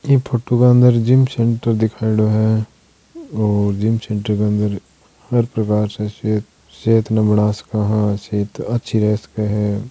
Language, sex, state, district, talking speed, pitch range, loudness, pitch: Hindi, male, Rajasthan, Churu, 155 wpm, 105-115 Hz, -17 LUFS, 110 Hz